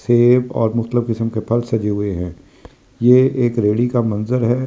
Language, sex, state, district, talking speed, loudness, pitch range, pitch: Hindi, male, Delhi, New Delhi, 180 wpm, -17 LUFS, 110-120 Hz, 115 Hz